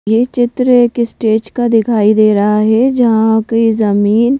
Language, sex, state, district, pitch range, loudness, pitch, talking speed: Hindi, female, Madhya Pradesh, Bhopal, 215-240 Hz, -12 LUFS, 225 Hz, 165 wpm